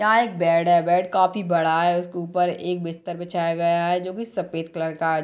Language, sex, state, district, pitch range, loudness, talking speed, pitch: Hindi, female, Chhattisgarh, Bilaspur, 165-180 Hz, -22 LUFS, 240 wpm, 175 Hz